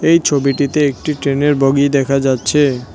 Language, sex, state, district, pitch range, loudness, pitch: Bengali, male, West Bengal, Cooch Behar, 135-145 Hz, -14 LUFS, 140 Hz